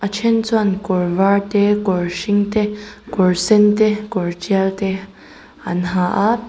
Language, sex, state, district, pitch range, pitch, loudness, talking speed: Mizo, female, Mizoram, Aizawl, 185-210 Hz, 200 Hz, -17 LUFS, 155 wpm